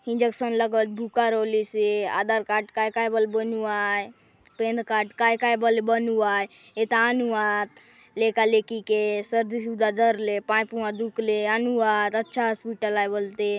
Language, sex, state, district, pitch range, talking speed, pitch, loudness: Halbi, female, Chhattisgarh, Bastar, 210-230 Hz, 155 wpm, 220 Hz, -24 LUFS